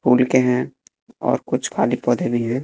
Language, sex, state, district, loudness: Hindi, male, Bihar, West Champaran, -20 LUFS